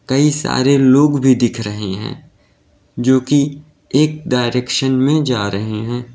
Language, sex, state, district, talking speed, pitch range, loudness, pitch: Hindi, male, Uttar Pradesh, Lalitpur, 145 wpm, 120-145 Hz, -15 LUFS, 130 Hz